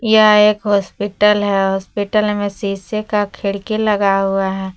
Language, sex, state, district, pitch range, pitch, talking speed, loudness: Hindi, female, Jharkhand, Palamu, 195-210 Hz, 205 Hz, 150 wpm, -16 LUFS